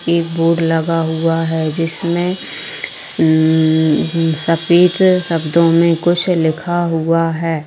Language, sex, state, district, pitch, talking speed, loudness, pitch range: Hindi, female, Bihar, Madhepura, 165 Hz, 110 wpm, -15 LUFS, 160-170 Hz